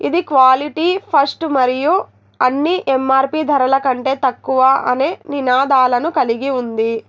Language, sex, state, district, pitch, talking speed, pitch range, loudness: Telugu, female, Telangana, Hyderabad, 270 Hz, 110 wpm, 260-300 Hz, -15 LUFS